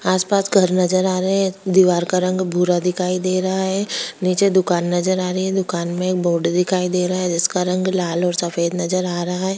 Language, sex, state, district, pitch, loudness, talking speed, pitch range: Hindi, female, Bihar, Kishanganj, 185 Hz, -19 LUFS, 230 wpm, 180-185 Hz